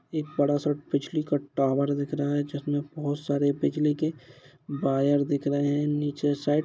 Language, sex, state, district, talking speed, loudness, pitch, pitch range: Hindi, male, Bihar, Gopalganj, 190 wpm, -27 LUFS, 145 Hz, 140-150 Hz